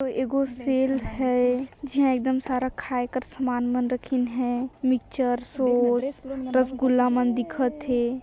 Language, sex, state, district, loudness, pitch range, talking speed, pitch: Hindi, female, Chhattisgarh, Sarguja, -25 LUFS, 250-265 Hz, 125 wpm, 255 Hz